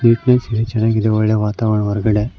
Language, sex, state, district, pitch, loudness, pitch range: Kannada, male, Karnataka, Koppal, 110 Hz, -16 LUFS, 105-115 Hz